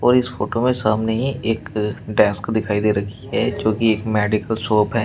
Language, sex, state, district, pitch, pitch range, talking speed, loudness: Hindi, male, Uttar Pradesh, Shamli, 110 Hz, 105-115 Hz, 215 wpm, -20 LUFS